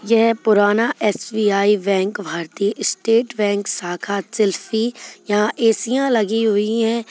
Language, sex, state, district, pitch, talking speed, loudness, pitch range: Hindi, female, Chhattisgarh, Kabirdham, 210 Hz, 120 wpm, -18 LUFS, 200-230 Hz